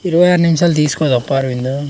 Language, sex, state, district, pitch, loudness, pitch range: Telugu, male, Andhra Pradesh, Sri Satya Sai, 150 Hz, -14 LUFS, 135-175 Hz